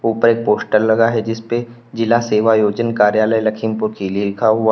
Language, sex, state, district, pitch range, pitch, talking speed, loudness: Hindi, male, Uttar Pradesh, Lalitpur, 110-115 Hz, 110 Hz, 175 wpm, -16 LUFS